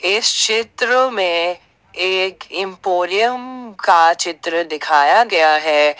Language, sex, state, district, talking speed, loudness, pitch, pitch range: Hindi, female, Jharkhand, Ranchi, 100 wpm, -16 LUFS, 180 Hz, 165-225 Hz